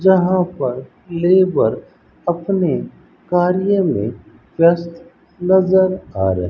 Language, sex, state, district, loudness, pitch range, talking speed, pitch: Hindi, male, Rajasthan, Bikaner, -17 LUFS, 135-185 Hz, 100 wpm, 175 Hz